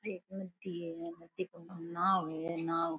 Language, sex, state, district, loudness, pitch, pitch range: Rajasthani, female, Rajasthan, Nagaur, -37 LUFS, 170 Hz, 165-185 Hz